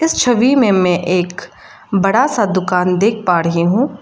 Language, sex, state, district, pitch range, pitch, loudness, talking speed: Hindi, female, Arunachal Pradesh, Lower Dibang Valley, 180-240 Hz, 195 Hz, -14 LUFS, 165 wpm